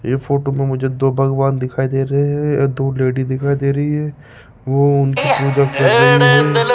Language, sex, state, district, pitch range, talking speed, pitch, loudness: Hindi, male, Rajasthan, Jaipur, 130-140 Hz, 180 wpm, 135 Hz, -15 LUFS